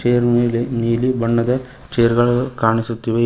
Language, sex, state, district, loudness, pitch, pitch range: Kannada, male, Karnataka, Koppal, -18 LUFS, 120 Hz, 115-125 Hz